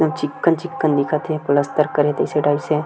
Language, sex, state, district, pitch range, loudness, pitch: Chhattisgarhi, male, Chhattisgarh, Sukma, 145-155 Hz, -19 LUFS, 150 Hz